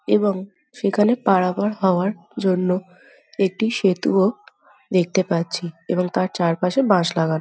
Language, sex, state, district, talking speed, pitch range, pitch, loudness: Bengali, female, West Bengal, Jhargram, 115 wpm, 180-205 Hz, 190 Hz, -21 LUFS